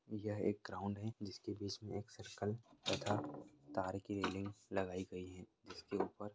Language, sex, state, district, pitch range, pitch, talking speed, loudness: Hindi, male, Bihar, Araria, 95-105 Hz, 100 Hz, 170 wpm, -44 LUFS